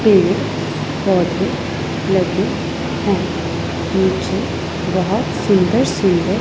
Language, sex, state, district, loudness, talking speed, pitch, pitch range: Hindi, female, Punjab, Pathankot, -18 LUFS, 75 wpm, 195 Hz, 185-205 Hz